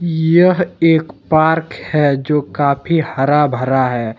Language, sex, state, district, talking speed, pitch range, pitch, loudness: Hindi, male, Jharkhand, Deoghar, 145 wpm, 140-165 Hz, 150 Hz, -15 LUFS